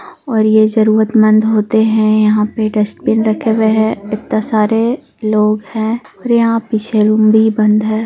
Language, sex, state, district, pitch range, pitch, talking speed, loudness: Hindi, female, Bihar, Gaya, 215-225 Hz, 220 Hz, 165 wpm, -13 LUFS